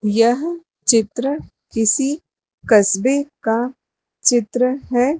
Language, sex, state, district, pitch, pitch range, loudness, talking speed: Hindi, male, Madhya Pradesh, Dhar, 250 Hz, 225-280 Hz, -18 LUFS, 80 wpm